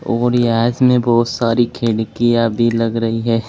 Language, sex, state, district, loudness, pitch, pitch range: Hindi, male, Uttar Pradesh, Saharanpur, -16 LUFS, 115 Hz, 115-120 Hz